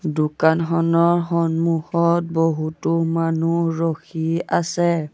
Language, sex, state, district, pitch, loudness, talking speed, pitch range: Assamese, male, Assam, Sonitpur, 165 Hz, -20 LUFS, 70 wpm, 160-170 Hz